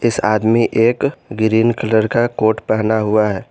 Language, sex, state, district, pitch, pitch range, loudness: Hindi, male, Jharkhand, Garhwa, 110 Hz, 110-115 Hz, -16 LUFS